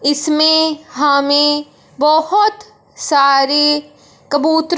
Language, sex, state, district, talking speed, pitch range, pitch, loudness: Hindi, male, Punjab, Fazilka, 65 wpm, 290-315 Hz, 295 Hz, -13 LUFS